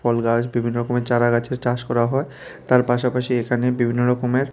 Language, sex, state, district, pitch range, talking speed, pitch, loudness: Bengali, male, Tripura, West Tripura, 120-125 Hz, 160 wpm, 120 Hz, -20 LUFS